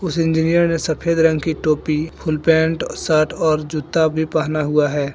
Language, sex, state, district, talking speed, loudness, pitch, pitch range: Hindi, male, Jharkhand, Deoghar, 185 wpm, -18 LUFS, 160 Hz, 155-165 Hz